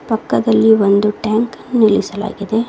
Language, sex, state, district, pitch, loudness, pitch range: Kannada, female, Karnataka, Koppal, 220 Hz, -15 LUFS, 210-225 Hz